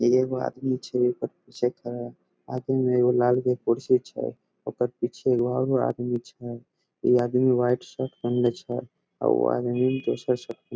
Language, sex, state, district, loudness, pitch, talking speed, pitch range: Maithili, male, Bihar, Samastipur, -25 LUFS, 125 Hz, 180 wpm, 120-130 Hz